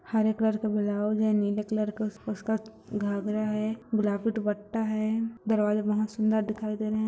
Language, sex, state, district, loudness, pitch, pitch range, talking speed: Hindi, female, Chhattisgarh, Bilaspur, -29 LUFS, 215 Hz, 210-220 Hz, 180 wpm